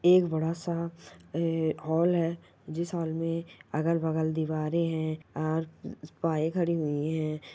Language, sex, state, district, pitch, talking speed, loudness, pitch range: Angika, male, Bihar, Samastipur, 165 Hz, 125 wpm, -30 LUFS, 155-170 Hz